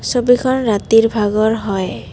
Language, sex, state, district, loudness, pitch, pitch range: Assamese, female, Assam, Kamrup Metropolitan, -15 LUFS, 220 Hz, 205-245 Hz